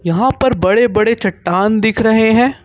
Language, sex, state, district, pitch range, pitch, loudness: Hindi, male, Jharkhand, Ranchi, 195-240 Hz, 220 Hz, -13 LUFS